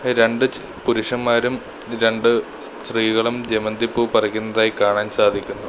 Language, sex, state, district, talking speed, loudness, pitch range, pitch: Malayalam, male, Kerala, Kollam, 85 wpm, -19 LUFS, 110-120 Hz, 115 Hz